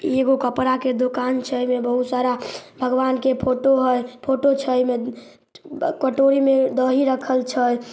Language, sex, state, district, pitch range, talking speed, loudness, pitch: Maithili, female, Bihar, Samastipur, 250-265 Hz, 160 wpm, -20 LUFS, 255 Hz